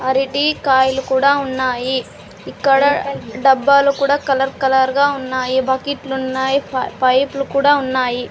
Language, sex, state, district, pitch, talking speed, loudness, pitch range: Telugu, female, Andhra Pradesh, Sri Satya Sai, 270 Hz, 115 wpm, -16 LUFS, 260-280 Hz